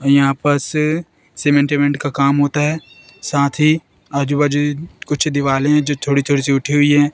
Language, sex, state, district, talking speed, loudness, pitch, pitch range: Hindi, female, Madhya Pradesh, Katni, 185 wpm, -16 LUFS, 145 Hz, 140-150 Hz